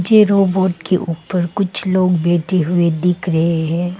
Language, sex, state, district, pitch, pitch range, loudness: Hindi, female, Arunachal Pradesh, Longding, 180 Hz, 170-185 Hz, -16 LUFS